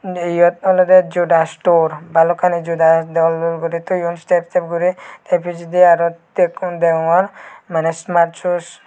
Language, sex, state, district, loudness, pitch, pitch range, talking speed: Chakma, male, Tripura, Dhalai, -16 LUFS, 170 Hz, 165-180 Hz, 140 wpm